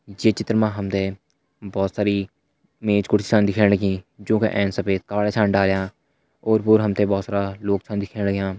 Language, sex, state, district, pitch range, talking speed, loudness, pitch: Hindi, male, Uttarakhand, Tehri Garhwal, 100-105 Hz, 180 wpm, -21 LUFS, 100 Hz